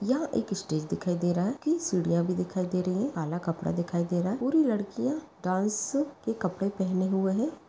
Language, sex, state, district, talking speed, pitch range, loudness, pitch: Hindi, female, Bihar, Begusarai, 220 wpm, 180-245 Hz, -29 LUFS, 195 Hz